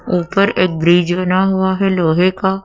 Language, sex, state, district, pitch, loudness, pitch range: Hindi, female, Madhya Pradesh, Dhar, 185 Hz, -14 LUFS, 175-190 Hz